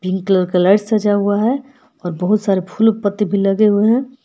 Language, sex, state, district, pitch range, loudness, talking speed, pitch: Hindi, female, Jharkhand, Palamu, 190-220 Hz, -16 LUFS, 225 wpm, 205 Hz